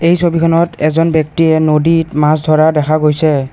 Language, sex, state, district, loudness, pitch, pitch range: Assamese, male, Assam, Kamrup Metropolitan, -12 LUFS, 155 Hz, 155-165 Hz